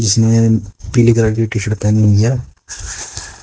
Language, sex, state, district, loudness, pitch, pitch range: Hindi, male, Haryana, Jhajjar, -14 LUFS, 110 Hz, 105-115 Hz